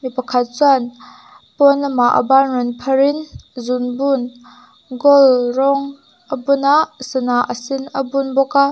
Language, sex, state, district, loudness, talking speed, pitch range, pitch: Mizo, female, Mizoram, Aizawl, -16 LUFS, 145 wpm, 250-275 Hz, 270 Hz